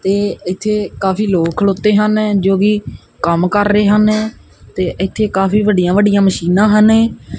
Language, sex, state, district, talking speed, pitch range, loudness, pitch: Punjabi, male, Punjab, Kapurthala, 155 wpm, 190-210 Hz, -13 LUFS, 205 Hz